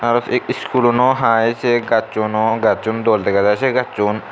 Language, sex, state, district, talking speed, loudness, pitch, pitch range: Chakma, male, Tripura, Unakoti, 165 wpm, -16 LUFS, 115 Hz, 110-120 Hz